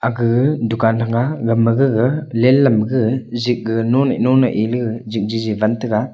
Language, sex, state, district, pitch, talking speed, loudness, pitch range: Wancho, male, Arunachal Pradesh, Longding, 115 Hz, 175 wpm, -17 LUFS, 115-125 Hz